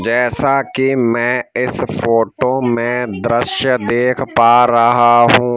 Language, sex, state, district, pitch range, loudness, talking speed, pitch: Hindi, male, Madhya Pradesh, Bhopal, 115-125 Hz, -14 LUFS, 120 wpm, 120 Hz